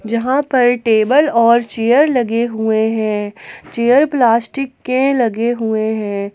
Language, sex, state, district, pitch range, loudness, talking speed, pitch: Hindi, female, Jharkhand, Garhwa, 220-255 Hz, -15 LUFS, 130 wpm, 235 Hz